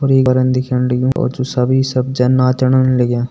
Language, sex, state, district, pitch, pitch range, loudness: Hindi, male, Uttarakhand, Tehri Garhwal, 130 Hz, 125-130 Hz, -14 LUFS